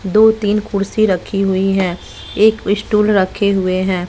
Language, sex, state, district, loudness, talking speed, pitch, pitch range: Hindi, female, Bihar, West Champaran, -15 LUFS, 160 wpm, 200 Hz, 190-210 Hz